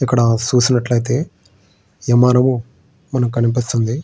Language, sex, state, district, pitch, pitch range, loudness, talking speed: Telugu, male, Andhra Pradesh, Srikakulam, 125 Hz, 120-130 Hz, -16 LUFS, 75 wpm